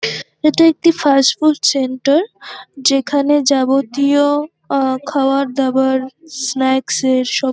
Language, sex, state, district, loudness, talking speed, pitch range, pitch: Bengali, female, West Bengal, North 24 Parganas, -15 LUFS, 95 wpm, 265-290 Hz, 275 Hz